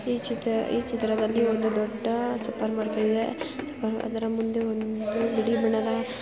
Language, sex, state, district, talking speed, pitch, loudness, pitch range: Kannada, female, Karnataka, Mysore, 105 wpm, 225 Hz, -27 LUFS, 220-235 Hz